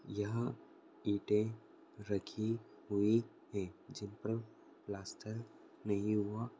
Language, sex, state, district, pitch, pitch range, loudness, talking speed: Hindi, male, Goa, North and South Goa, 105 Hz, 105-115 Hz, -39 LUFS, 100 wpm